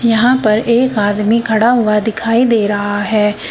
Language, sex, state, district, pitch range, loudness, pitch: Hindi, female, Uttar Pradesh, Shamli, 210-235 Hz, -13 LUFS, 220 Hz